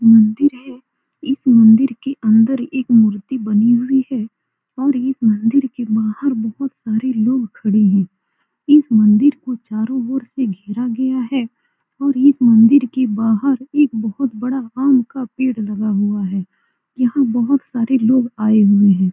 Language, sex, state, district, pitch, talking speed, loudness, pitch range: Hindi, female, Bihar, Saran, 245 Hz, 160 wpm, -16 LUFS, 220-265 Hz